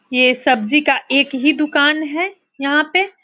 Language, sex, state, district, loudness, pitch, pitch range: Hindi, female, Bihar, Sitamarhi, -15 LUFS, 295 Hz, 270-310 Hz